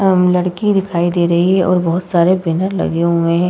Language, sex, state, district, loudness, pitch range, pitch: Hindi, female, Uttar Pradesh, Budaun, -14 LUFS, 170-185 Hz, 180 Hz